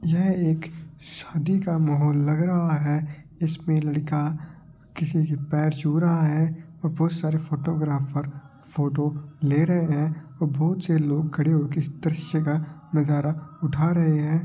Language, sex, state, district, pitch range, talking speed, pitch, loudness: Marwari, male, Rajasthan, Nagaur, 150-160 Hz, 155 wpm, 155 Hz, -24 LUFS